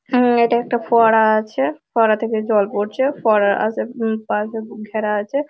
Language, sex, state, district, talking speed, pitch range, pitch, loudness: Bengali, female, West Bengal, Malda, 165 wpm, 215-240 Hz, 225 Hz, -18 LUFS